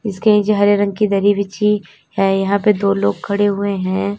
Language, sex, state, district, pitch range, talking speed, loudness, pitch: Hindi, female, Uttar Pradesh, Lalitpur, 195-205 Hz, 215 wpm, -16 LUFS, 200 Hz